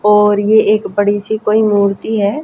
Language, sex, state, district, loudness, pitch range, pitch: Hindi, female, Haryana, Jhajjar, -13 LUFS, 205-215 Hz, 210 Hz